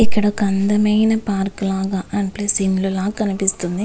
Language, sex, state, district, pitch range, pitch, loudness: Telugu, female, Andhra Pradesh, Visakhapatnam, 195-210 Hz, 200 Hz, -19 LUFS